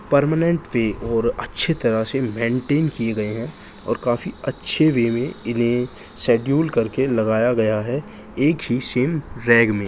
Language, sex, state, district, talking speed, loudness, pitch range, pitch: Hindi, male, Bihar, Jahanabad, 160 wpm, -21 LUFS, 115-145 Hz, 120 Hz